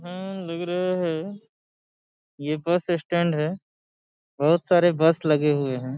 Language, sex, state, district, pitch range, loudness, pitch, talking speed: Hindi, male, Bihar, Saharsa, 155-180 Hz, -23 LUFS, 170 Hz, 140 wpm